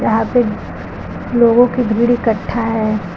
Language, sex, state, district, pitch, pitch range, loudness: Hindi, female, Uttar Pradesh, Lucknow, 230 Hz, 220-240 Hz, -15 LUFS